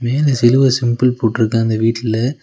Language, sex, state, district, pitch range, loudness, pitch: Tamil, male, Tamil Nadu, Nilgiris, 115-125 Hz, -15 LUFS, 120 Hz